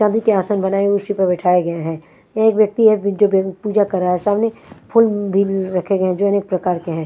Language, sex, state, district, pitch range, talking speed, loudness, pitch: Hindi, female, Punjab, Fazilka, 185-210 Hz, 270 wpm, -17 LUFS, 200 Hz